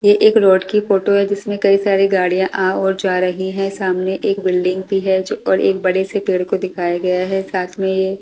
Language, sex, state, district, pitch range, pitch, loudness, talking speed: Hindi, female, Delhi, New Delhi, 185-195 Hz, 190 Hz, -16 LUFS, 240 wpm